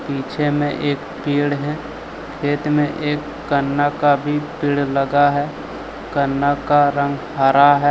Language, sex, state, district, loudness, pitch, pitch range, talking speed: Hindi, male, Jharkhand, Deoghar, -18 LUFS, 145 Hz, 140-145 Hz, 145 wpm